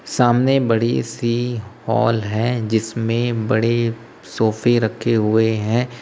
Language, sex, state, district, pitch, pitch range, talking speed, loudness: Hindi, male, Uttar Pradesh, Lalitpur, 115 Hz, 110-120 Hz, 110 wpm, -19 LUFS